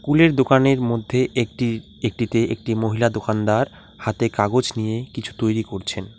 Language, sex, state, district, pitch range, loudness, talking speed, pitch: Bengali, male, West Bengal, Alipurduar, 110-125 Hz, -21 LUFS, 135 wpm, 115 Hz